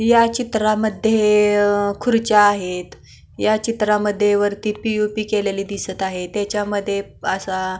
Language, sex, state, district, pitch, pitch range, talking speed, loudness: Marathi, female, Maharashtra, Pune, 210 Hz, 200-215 Hz, 125 wpm, -19 LUFS